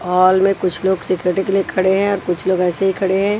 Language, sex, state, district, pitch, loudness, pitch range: Hindi, female, Chhattisgarh, Raipur, 190 Hz, -17 LUFS, 185-195 Hz